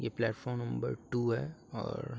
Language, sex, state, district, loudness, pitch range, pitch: Hindi, male, Uttar Pradesh, Hamirpur, -36 LUFS, 115-125 Hz, 120 Hz